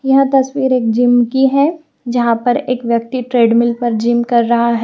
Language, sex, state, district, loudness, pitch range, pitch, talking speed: Hindi, female, Haryana, Jhajjar, -14 LUFS, 235-265 Hz, 245 Hz, 200 wpm